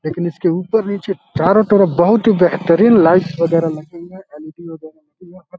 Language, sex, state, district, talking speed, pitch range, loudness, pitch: Hindi, male, Uttar Pradesh, Deoria, 170 wpm, 165-195 Hz, -14 LUFS, 175 Hz